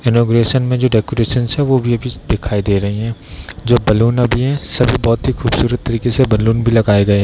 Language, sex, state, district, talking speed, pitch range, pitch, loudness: Hindi, male, Bihar, Darbhanga, 215 wpm, 110-125 Hz, 115 Hz, -14 LUFS